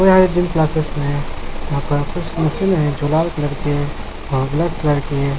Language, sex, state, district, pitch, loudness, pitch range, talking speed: Hindi, male, Bihar, Lakhisarai, 150 Hz, -18 LUFS, 145-165 Hz, 210 wpm